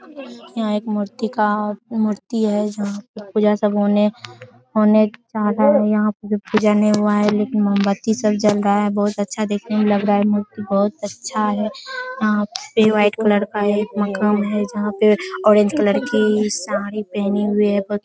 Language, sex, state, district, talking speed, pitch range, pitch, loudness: Hindi, female, Bihar, Araria, 185 wpm, 205-215 Hz, 210 Hz, -18 LUFS